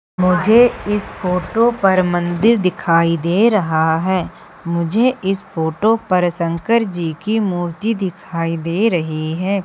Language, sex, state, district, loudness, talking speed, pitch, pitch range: Hindi, female, Madhya Pradesh, Umaria, -17 LUFS, 130 wpm, 185 Hz, 170-215 Hz